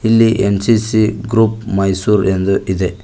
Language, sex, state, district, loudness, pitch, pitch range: Kannada, male, Karnataka, Koppal, -14 LUFS, 105 Hz, 95-110 Hz